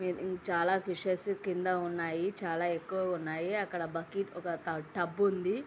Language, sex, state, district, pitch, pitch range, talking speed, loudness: Telugu, female, Andhra Pradesh, Anantapur, 180 Hz, 170-190 Hz, 135 wpm, -34 LUFS